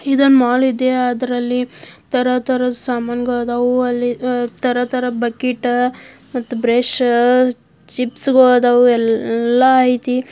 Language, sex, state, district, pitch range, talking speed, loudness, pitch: Kannada, female, Karnataka, Belgaum, 245-255 Hz, 100 wpm, -15 LUFS, 250 Hz